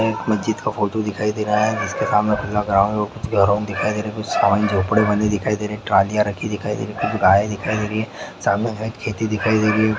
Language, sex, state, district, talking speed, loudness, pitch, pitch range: Hindi, male, Bihar, Gopalganj, 250 wpm, -20 LUFS, 105 Hz, 105-110 Hz